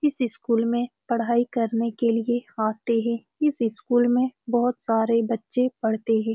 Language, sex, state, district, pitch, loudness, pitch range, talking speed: Hindi, female, Bihar, Saran, 235 Hz, -24 LUFS, 230-245 Hz, 170 wpm